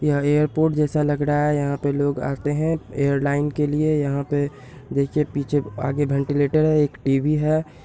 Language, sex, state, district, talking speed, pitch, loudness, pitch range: Hindi, male, Bihar, Purnia, 175 wpm, 145 Hz, -21 LUFS, 140-150 Hz